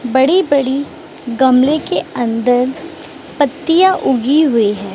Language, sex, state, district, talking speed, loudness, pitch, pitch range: Hindi, female, Maharashtra, Mumbai Suburban, 110 wpm, -14 LUFS, 270 Hz, 245-315 Hz